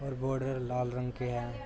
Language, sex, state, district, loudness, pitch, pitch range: Hindi, male, Uttar Pradesh, Jalaun, -34 LUFS, 125 Hz, 125-130 Hz